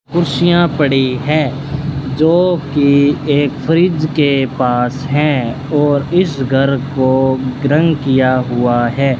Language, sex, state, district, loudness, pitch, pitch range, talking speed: Hindi, male, Rajasthan, Bikaner, -14 LUFS, 140 Hz, 130-150 Hz, 110 wpm